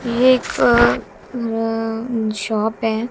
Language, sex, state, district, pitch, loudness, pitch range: Hindi, female, Haryana, Jhajjar, 225 Hz, -18 LUFS, 220-235 Hz